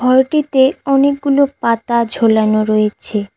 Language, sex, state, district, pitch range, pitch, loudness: Bengali, female, West Bengal, Cooch Behar, 220-275 Hz, 250 Hz, -14 LUFS